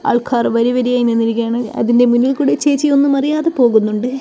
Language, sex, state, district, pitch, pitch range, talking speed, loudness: Malayalam, female, Kerala, Kozhikode, 245 Hz, 235-275 Hz, 130 wpm, -14 LUFS